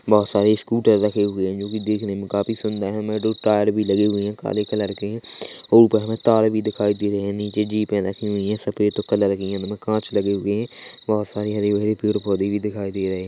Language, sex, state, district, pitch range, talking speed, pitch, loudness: Hindi, male, Chhattisgarh, Korba, 100-105 Hz, 250 wpm, 105 Hz, -21 LUFS